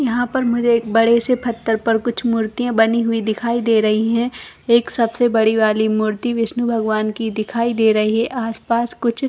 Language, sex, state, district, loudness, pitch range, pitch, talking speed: Hindi, female, Chhattisgarh, Bastar, -18 LUFS, 220-240 Hz, 230 Hz, 220 wpm